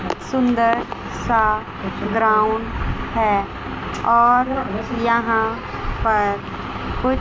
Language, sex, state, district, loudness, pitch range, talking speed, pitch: Hindi, female, Chandigarh, Chandigarh, -20 LUFS, 215-235 Hz, 65 wpm, 225 Hz